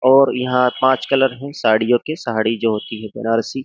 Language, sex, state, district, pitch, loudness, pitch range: Hindi, male, Uttar Pradesh, Jyotiba Phule Nagar, 125 Hz, -18 LUFS, 115-135 Hz